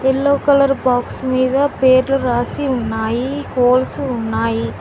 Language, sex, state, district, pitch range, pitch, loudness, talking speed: Telugu, female, Telangana, Mahabubabad, 240-275 Hz, 255 Hz, -16 LUFS, 110 wpm